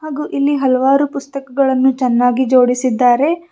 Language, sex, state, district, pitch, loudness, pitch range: Kannada, female, Karnataka, Bidar, 265 Hz, -14 LUFS, 255-280 Hz